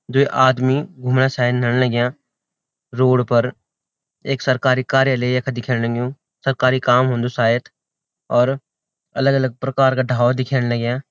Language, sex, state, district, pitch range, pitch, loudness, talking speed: Garhwali, male, Uttarakhand, Uttarkashi, 125-135 Hz, 130 Hz, -18 LUFS, 140 wpm